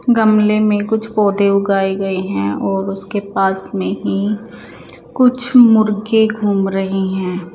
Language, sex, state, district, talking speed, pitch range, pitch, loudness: Hindi, male, Odisha, Nuapada, 135 wpm, 195-220 Hz, 200 Hz, -15 LUFS